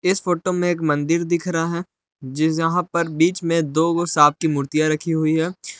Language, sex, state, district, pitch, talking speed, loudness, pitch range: Hindi, male, Jharkhand, Palamu, 165 Hz, 205 wpm, -20 LUFS, 155-175 Hz